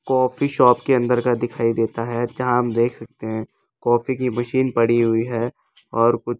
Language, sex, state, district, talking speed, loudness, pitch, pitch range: Hindi, male, Delhi, New Delhi, 205 wpm, -20 LUFS, 120 Hz, 115-125 Hz